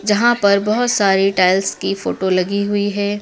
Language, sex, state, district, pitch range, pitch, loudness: Hindi, female, Madhya Pradesh, Dhar, 190-205 Hz, 200 Hz, -16 LUFS